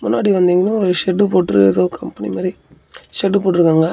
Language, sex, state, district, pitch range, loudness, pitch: Tamil, male, Tamil Nadu, Namakkal, 160-195 Hz, -15 LUFS, 180 Hz